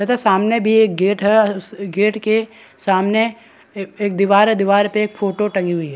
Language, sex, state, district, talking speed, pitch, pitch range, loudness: Hindi, male, Chhattisgarh, Bastar, 220 wpm, 210 Hz, 195-220 Hz, -16 LUFS